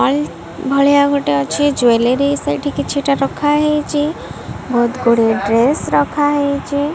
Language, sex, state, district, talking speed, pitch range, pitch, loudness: Odia, female, Odisha, Malkangiri, 95 wpm, 235-290 Hz, 275 Hz, -15 LUFS